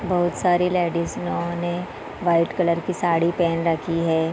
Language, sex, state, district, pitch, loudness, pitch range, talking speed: Hindi, female, Chhattisgarh, Bilaspur, 170 Hz, -22 LUFS, 165-175 Hz, 165 wpm